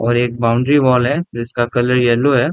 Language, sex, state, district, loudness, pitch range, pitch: Hindi, male, Bihar, Darbhanga, -15 LUFS, 120-130 Hz, 120 Hz